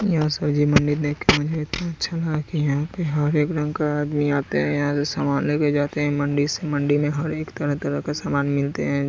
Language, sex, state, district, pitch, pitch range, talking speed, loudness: Hindi, male, Bihar, West Champaran, 145 Hz, 145-150 Hz, 240 wpm, -22 LUFS